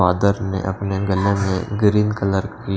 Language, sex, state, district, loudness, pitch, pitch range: Hindi, male, Maharashtra, Washim, -20 LUFS, 100 Hz, 95-100 Hz